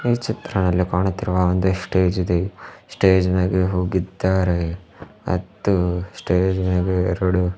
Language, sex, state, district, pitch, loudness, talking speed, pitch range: Kannada, male, Karnataka, Bidar, 90 Hz, -20 LUFS, 105 wpm, 90-95 Hz